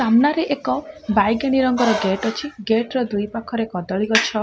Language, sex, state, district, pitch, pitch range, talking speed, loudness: Odia, female, Odisha, Khordha, 230 Hz, 215-265 Hz, 175 wpm, -20 LUFS